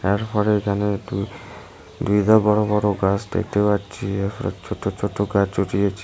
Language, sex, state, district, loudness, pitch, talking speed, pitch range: Bengali, male, Tripura, West Tripura, -21 LUFS, 100 Hz, 150 wpm, 100-105 Hz